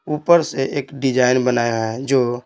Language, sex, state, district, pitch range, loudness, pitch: Hindi, male, Bihar, Patna, 125-140 Hz, -18 LUFS, 130 Hz